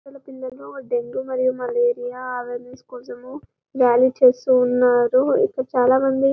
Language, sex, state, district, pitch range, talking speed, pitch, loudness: Telugu, female, Telangana, Karimnagar, 250-275 Hz, 115 wpm, 255 Hz, -19 LUFS